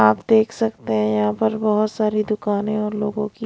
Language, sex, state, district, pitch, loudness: Hindi, female, Punjab, Pathankot, 210 Hz, -20 LUFS